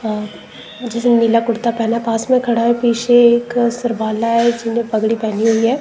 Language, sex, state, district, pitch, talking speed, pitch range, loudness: Hindi, female, Punjab, Kapurthala, 235 Hz, 195 wpm, 225-240 Hz, -15 LUFS